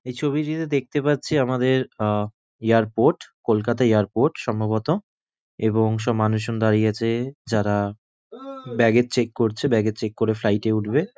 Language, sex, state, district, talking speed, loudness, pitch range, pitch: Bengali, male, West Bengal, North 24 Parganas, 145 wpm, -22 LUFS, 110-130 Hz, 115 Hz